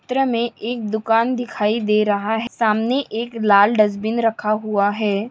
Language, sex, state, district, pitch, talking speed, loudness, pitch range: Hindi, female, Maharashtra, Aurangabad, 220 Hz, 180 wpm, -19 LUFS, 210-235 Hz